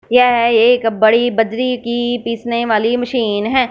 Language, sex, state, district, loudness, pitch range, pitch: Hindi, female, Punjab, Fazilka, -15 LUFS, 225-245 Hz, 235 Hz